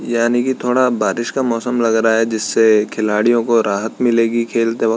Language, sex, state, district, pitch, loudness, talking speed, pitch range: Hindi, male, Uttarakhand, Tehri Garhwal, 115 Hz, -16 LUFS, 195 wpm, 110-120 Hz